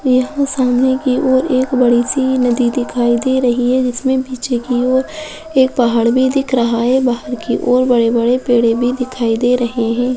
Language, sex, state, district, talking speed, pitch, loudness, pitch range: Hindi, female, Bihar, Bhagalpur, 195 wpm, 250 Hz, -14 LUFS, 240-260 Hz